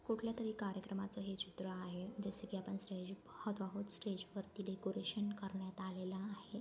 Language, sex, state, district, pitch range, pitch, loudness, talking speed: Marathi, female, Maharashtra, Aurangabad, 190-205 Hz, 195 Hz, -45 LUFS, 165 wpm